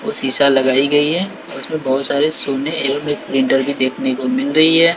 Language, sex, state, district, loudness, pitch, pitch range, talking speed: Hindi, male, Bihar, West Champaran, -15 LUFS, 140 Hz, 135-155 Hz, 215 wpm